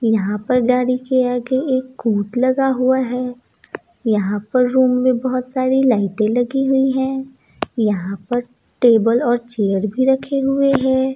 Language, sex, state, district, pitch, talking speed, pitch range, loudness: Hindi, female, Bihar, East Champaran, 250 Hz, 155 wpm, 230-260 Hz, -18 LUFS